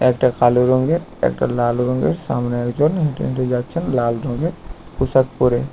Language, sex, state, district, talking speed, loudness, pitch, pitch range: Bengali, male, West Bengal, Paschim Medinipur, 155 wpm, -18 LUFS, 125 Hz, 120-135 Hz